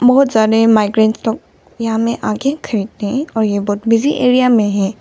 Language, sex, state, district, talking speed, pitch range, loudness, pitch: Hindi, female, Arunachal Pradesh, Papum Pare, 190 wpm, 215-245 Hz, -14 LUFS, 225 Hz